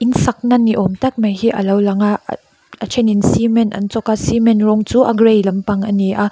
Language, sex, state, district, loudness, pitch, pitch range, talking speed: Mizo, female, Mizoram, Aizawl, -14 LUFS, 215 Hz, 205-230 Hz, 230 wpm